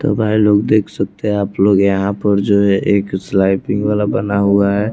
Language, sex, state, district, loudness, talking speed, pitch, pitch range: Hindi, male, Chandigarh, Chandigarh, -15 LUFS, 220 wpm, 100 Hz, 100-105 Hz